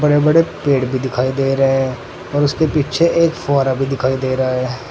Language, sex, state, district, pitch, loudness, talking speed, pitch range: Hindi, male, Uttar Pradesh, Saharanpur, 135 Hz, -16 LUFS, 220 wpm, 130-150 Hz